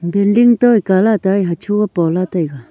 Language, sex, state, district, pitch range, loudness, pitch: Wancho, female, Arunachal Pradesh, Longding, 175-210 Hz, -14 LUFS, 190 Hz